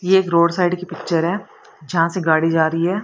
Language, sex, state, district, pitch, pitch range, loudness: Hindi, female, Haryana, Rohtak, 170 Hz, 165-180 Hz, -18 LUFS